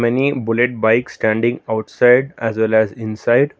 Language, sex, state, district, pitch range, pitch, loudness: English, male, Karnataka, Bangalore, 110-125 Hz, 115 Hz, -17 LUFS